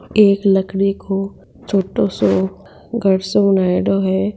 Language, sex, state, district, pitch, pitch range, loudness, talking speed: Marwari, female, Rajasthan, Nagaur, 195 Hz, 190-200 Hz, -17 LUFS, 125 wpm